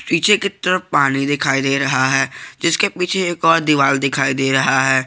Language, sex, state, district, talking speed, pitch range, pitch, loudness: Hindi, male, Jharkhand, Garhwa, 200 wpm, 135-175 Hz, 140 Hz, -16 LUFS